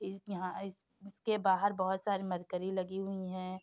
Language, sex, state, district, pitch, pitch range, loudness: Hindi, female, Uttar Pradesh, Jyotiba Phule Nagar, 190 Hz, 185-200 Hz, -36 LUFS